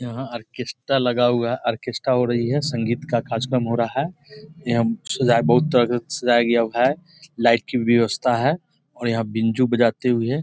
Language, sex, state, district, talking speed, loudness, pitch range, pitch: Hindi, male, Bihar, East Champaran, 195 wpm, -21 LUFS, 115-130 Hz, 120 Hz